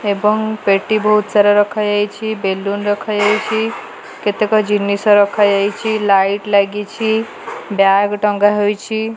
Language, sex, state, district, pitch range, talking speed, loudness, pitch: Odia, female, Odisha, Malkangiri, 200-215 Hz, 100 wpm, -15 LUFS, 205 Hz